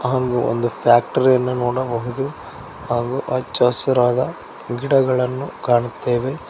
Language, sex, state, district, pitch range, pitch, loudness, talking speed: Kannada, male, Karnataka, Koppal, 120-130 Hz, 125 Hz, -18 LUFS, 90 wpm